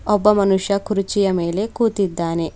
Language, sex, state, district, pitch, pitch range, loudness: Kannada, female, Karnataka, Bidar, 200 Hz, 185-210 Hz, -19 LUFS